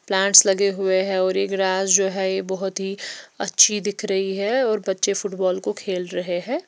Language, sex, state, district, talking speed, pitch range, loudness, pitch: Hindi, female, Bihar, West Champaran, 205 wpm, 190-200 Hz, -20 LUFS, 195 Hz